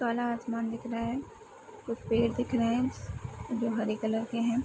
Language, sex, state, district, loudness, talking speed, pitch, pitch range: Hindi, female, Bihar, Sitamarhi, -32 LUFS, 195 wpm, 235 Hz, 230-245 Hz